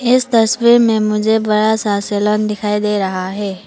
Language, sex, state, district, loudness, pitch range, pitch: Hindi, female, Arunachal Pradesh, Papum Pare, -14 LUFS, 205-220 Hz, 210 Hz